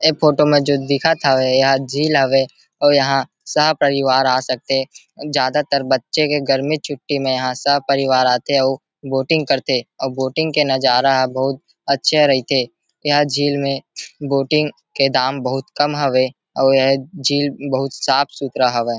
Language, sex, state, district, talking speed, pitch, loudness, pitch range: Chhattisgarhi, male, Chhattisgarh, Rajnandgaon, 165 wpm, 135 Hz, -17 LUFS, 130-145 Hz